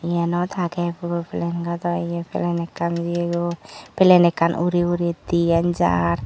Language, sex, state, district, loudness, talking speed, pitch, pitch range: Chakma, female, Tripura, Dhalai, -21 LUFS, 145 wpm, 170 Hz, 170-175 Hz